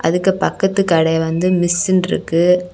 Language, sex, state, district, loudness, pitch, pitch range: Tamil, female, Tamil Nadu, Kanyakumari, -16 LUFS, 180 Hz, 165-185 Hz